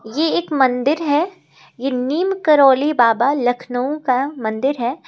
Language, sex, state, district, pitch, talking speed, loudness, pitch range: Hindi, female, Uttar Pradesh, Lucknow, 275 Hz, 140 wpm, -17 LUFS, 245-300 Hz